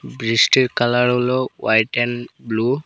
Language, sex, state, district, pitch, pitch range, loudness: Bengali, male, Assam, Hailakandi, 120 Hz, 115-125 Hz, -18 LUFS